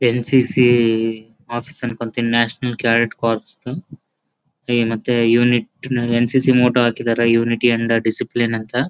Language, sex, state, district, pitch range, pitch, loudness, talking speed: Kannada, male, Karnataka, Bellary, 115-120 Hz, 120 Hz, -17 LUFS, 135 wpm